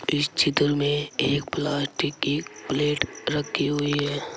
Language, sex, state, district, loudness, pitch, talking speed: Hindi, male, Uttar Pradesh, Saharanpur, -25 LUFS, 145 Hz, 135 wpm